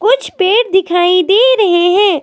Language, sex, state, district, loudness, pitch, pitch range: Hindi, female, Himachal Pradesh, Shimla, -10 LUFS, 385 Hz, 360-445 Hz